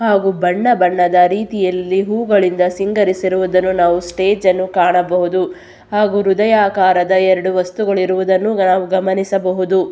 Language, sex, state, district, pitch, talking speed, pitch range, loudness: Kannada, female, Karnataka, Belgaum, 185 Hz, 105 wpm, 180-200 Hz, -14 LUFS